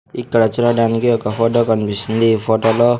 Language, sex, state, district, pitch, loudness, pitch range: Telugu, male, Andhra Pradesh, Sri Satya Sai, 115 Hz, -16 LUFS, 110-120 Hz